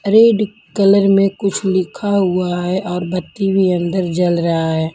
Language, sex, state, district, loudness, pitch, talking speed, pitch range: Hindi, female, Punjab, Kapurthala, -16 LUFS, 190 Hz, 170 wpm, 175-200 Hz